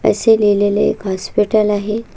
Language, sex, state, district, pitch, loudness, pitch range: Marathi, female, Maharashtra, Solapur, 210 Hz, -15 LUFS, 205-220 Hz